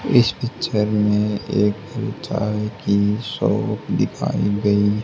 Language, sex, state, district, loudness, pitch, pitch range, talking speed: Hindi, male, Haryana, Charkhi Dadri, -20 LUFS, 105 Hz, 105-115 Hz, 105 wpm